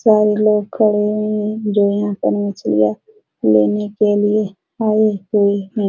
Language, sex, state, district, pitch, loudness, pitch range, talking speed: Hindi, female, Bihar, Supaul, 210 Hz, -16 LUFS, 200-215 Hz, 165 wpm